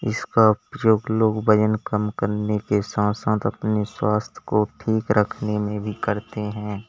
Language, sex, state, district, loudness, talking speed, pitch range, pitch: Hindi, male, Uttar Pradesh, Lalitpur, -22 LUFS, 155 wpm, 105-110 Hz, 105 Hz